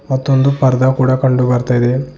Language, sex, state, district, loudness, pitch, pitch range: Kannada, male, Karnataka, Bidar, -13 LUFS, 130 Hz, 125-135 Hz